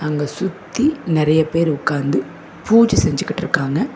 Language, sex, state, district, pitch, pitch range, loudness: Tamil, female, Tamil Nadu, Namakkal, 155 Hz, 145-190 Hz, -18 LUFS